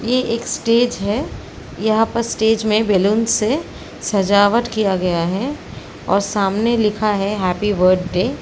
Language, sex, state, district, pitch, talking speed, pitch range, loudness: Hindi, female, Uttar Pradesh, Jalaun, 210 Hz, 150 wpm, 195-230 Hz, -17 LUFS